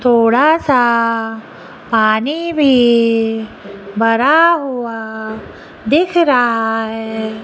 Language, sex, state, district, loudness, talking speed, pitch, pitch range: Hindi, female, Rajasthan, Jaipur, -14 LUFS, 75 wpm, 230 Hz, 220-265 Hz